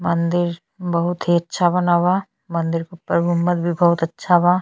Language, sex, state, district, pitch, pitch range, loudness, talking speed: Bhojpuri, female, Uttar Pradesh, Ghazipur, 175 Hz, 170-175 Hz, -19 LUFS, 155 wpm